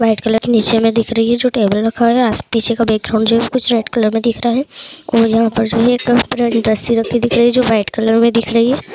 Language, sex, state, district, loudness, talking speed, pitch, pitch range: Hindi, female, Chhattisgarh, Korba, -14 LUFS, 270 wpm, 230 Hz, 225-240 Hz